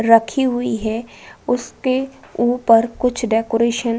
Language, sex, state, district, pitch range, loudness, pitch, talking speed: Hindi, female, Uttar Pradesh, Budaun, 230-245 Hz, -18 LUFS, 235 Hz, 120 wpm